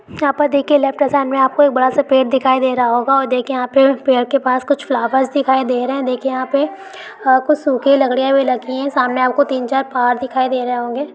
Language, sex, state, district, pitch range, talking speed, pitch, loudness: Hindi, female, Bihar, Bhagalpur, 255-280 Hz, 255 wpm, 265 Hz, -15 LUFS